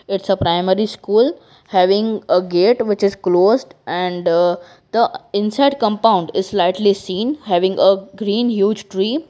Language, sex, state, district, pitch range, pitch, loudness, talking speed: English, female, Gujarat, Valsad, 180-220 Hz, 195 Hz, -17 LUFS, 140 wpm